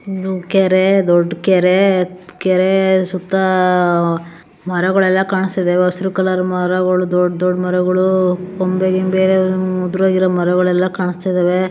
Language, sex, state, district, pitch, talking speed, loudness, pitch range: Kannada, female, Karnataka, Mysore, 185 Hz, 100 wpm, -15 LUFS, 180-190 Hz